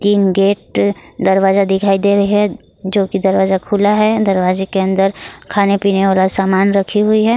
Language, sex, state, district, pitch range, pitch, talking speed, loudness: Hindi, female, Jharkhand, Garhwa, 190-205 Hz, 195 Hz, 180 wpm, -14 LUFS